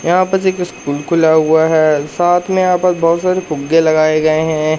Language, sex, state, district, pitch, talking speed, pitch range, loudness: Hindi, male, Madhya Pradesh, Katni, 160 Hz, 200 wpm, 155-180 Hz, -13 LUFS